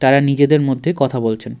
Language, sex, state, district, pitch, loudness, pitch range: Bengali, male, West Bengal, Darjeeling, 135 Hz, -16 LUFS, 125-140 Hz